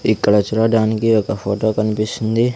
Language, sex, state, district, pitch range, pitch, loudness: Telugu, male, Andhra Pradesh, Sri Satya Sai, 105-110 Hz, 110 Hz, -17 LUFS